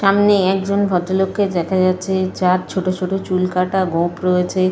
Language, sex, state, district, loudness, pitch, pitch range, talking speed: Bengali, female, Jharkhand, Jamtara, -17 LUFS, 185 Hz, 185-190 Hz, 150 wpm